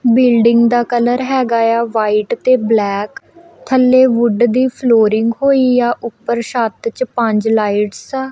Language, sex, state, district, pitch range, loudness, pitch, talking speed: Punjabi, female, Punjab, Kapurthala, 225-255 Hz, -14 LUFS, 235 Hz, 150 wpm